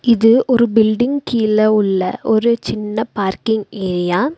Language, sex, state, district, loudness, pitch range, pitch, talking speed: Tamil, female, Tamil Nadu, Nilgiris, -16 LUFS, 205-235 Hz, 220 Hz, 135 wpm